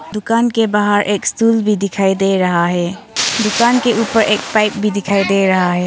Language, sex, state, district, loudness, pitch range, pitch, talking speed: Hindi, female, Arunachal Pradesh, Longding, -14 LUFS, 195-225 Hz, 210 Hz, 205 wpm